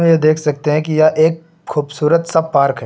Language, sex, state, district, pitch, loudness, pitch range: Hindi, male, Uttar Pradesh, Lucknow, 155 Hz, -15 LUFS, 150-165 Hz